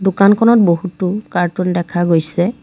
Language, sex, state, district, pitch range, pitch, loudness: Assamese, female, Assam, Kamrup Metropolitan, 175-200 Hz, 180 Hz, -14 LUFS